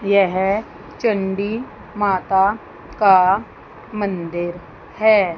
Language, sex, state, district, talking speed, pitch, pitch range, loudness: Hindi, female, Chandigarh, Chandigarh, 65 wpm, 195 Hz, 190-210 Hz, -19 LUFS